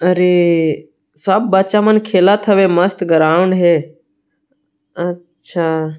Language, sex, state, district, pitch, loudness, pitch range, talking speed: Chhattisgarhi, male, Chhattisgarh, Sarguja, 180 Hz, -14 LUFS, 160-195 Hz, 110 wpm